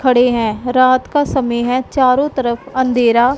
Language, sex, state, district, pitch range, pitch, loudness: Hindi, female, Punjab, Pathankot, 240-260 Hz, 255 Hz, -14 LUFS